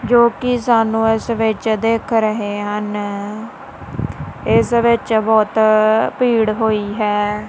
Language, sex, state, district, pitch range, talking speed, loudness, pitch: Punjabi, female, Punjab, Kapurthala, 210-230 Hz, 110 wpm, -16 LUFS, 220 Hz